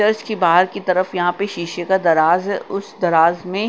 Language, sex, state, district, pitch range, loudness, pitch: Hindi, female, Punjab, Kapurthala, 175-200 Hz, -17 LUFS, 185 Hz